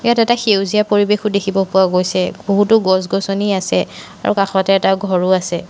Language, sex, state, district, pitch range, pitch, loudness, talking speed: Assamese, female, Assam, Sonitpur, 190-205 Hz, 195 Hz, -15 LUFS, 170 wpm